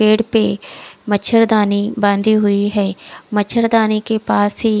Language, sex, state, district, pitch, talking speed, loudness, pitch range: Hindi, female, Odisha, Khordha, 215 Hz, 125 wpm, -15 LUFS, 205-220 Hz